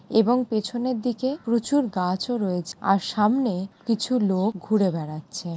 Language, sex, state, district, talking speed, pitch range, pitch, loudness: Bengali, female, West Bengal, Jalpaiguri, 140 wpm, 190-245 Hz, 215 Hz, -24 LUFS